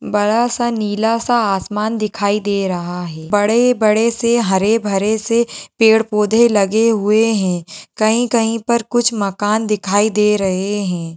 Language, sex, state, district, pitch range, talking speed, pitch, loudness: Hindi, female, Maharashtra, Sindhudurg, 200-230 Hz, 140 wpm, 215 Hz, -16 LUFS